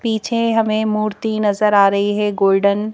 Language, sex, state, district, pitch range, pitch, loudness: Hindi, female, Madhya Pradesh, Bhopal, 205-220 Hz, 215 Hz, -16 LUFS